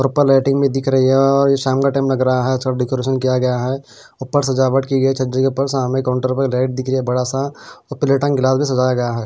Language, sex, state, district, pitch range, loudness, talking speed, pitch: Hindi, male, Punjab, Pathankot, 130-135 Hz, -17 LUFS, 280 wpm, 130 Hz